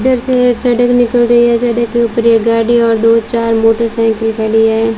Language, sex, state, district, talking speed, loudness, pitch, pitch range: Hindi, female, Rajasthan, Bikaner, 215 wpm, -11 LUFS, 230 Hz, 225-240 Hz